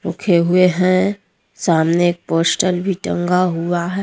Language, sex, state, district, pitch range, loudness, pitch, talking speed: Hindi, female, Jharkhand, Deoghar, 170-185 Hz, -16 LUFS, 180 Hz, 150 wpm